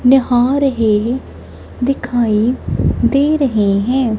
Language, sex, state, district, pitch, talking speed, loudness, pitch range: Hindi, male, Punjab, Kapurthala, 245 Hz, 85 wpm, -15 LUFS, 225-270 Hz